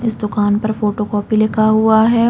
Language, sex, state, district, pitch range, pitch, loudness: Hindi, female, Uttarakhand, Uttarkashi, 210-220 Hz, 215 Hz, -15 LUFS